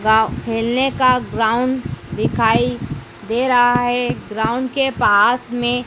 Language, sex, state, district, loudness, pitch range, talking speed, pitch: Hindi, female, Madhya Pradesh, Dhar, -17 LUFS, 220-250 Hz, 125 wpm, 240 Hz